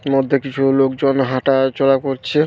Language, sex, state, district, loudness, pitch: Bengali, male, West Bengal, Paschim Medinipur, -16 LUFS, 135 Hz